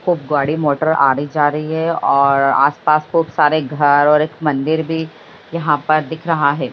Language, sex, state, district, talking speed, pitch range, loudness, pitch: Hindi, female, Bihar, Lakhisarai, 185 wpm, 145-160 Hz, -15 LUFS, 150 Hz